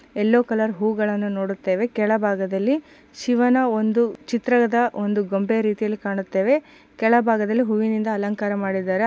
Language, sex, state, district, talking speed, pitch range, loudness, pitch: Kannada, female, Karnataka, Shimoga, 105 wpm, 205-240 Hz, -21 LUFS, 220 Hz